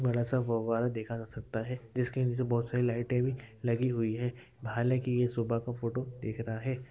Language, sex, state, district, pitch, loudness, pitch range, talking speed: Hindi, male, Uttar Pradesh, Hamirpur, 120 Hz, -33 LUFS, 115-125 Hz, 210 wpm